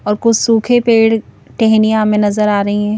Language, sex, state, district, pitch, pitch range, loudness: Hindi, female, Madhya Pradesh, Bhopal, 215 Hz, 210-225 Hz, -12 LUFS